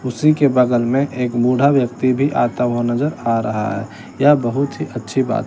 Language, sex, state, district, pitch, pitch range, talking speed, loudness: Hindi, male, Bihar, West Champaran, 125 Hz, 120-140 Hz, 210 wpm, -17 LUFS